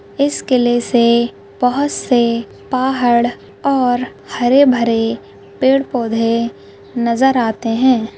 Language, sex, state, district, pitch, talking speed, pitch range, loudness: Hindi, female, Rajasthan, Nagaur, 240 Hz, 95 wpm, 230-255 Hz, -15 LUFS